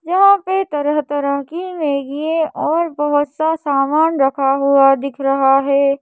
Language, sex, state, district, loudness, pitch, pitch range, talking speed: Hindi, female, Madhya Pradesh, Bhopal, -16 LUFS, 290 Hz, 275-320 Hz, 160 wpm